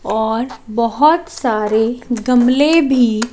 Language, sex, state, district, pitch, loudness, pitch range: Hindi, female, Chandigarh, Chandigarh, 240 Hz, -15 LUFS, 225-275 Hz